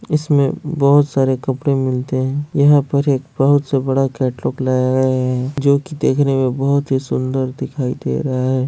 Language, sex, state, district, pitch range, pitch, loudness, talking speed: Hindi, male, Bihar, Kishanganj, 130-140 Hz, 135 Hz, -17 LUFS, 175 wpm